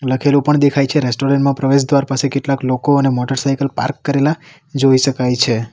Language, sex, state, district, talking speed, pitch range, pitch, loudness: Gujarati, male, Gujarat, Valsad, 180 wpm, 130-140 Hz, 140 Hz, -15 LUFS